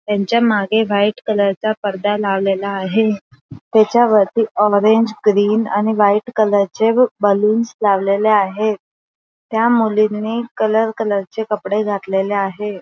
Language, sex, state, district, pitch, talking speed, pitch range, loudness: Marathi, female, Maharashtra, Aurangabad, 210 Hz, 115 wpm, 200-220 Hz, -16 LUFS